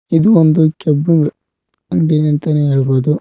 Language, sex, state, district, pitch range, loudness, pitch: Kannada, male, Karnataka, Koppal, 150-160 Hz, -13 LUFS, 155 Hz